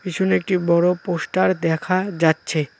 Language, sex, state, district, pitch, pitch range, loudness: Bengali, male, West Bengal, Cooch Behar, 170 Hz, 160-185 Hz, -20 LUFS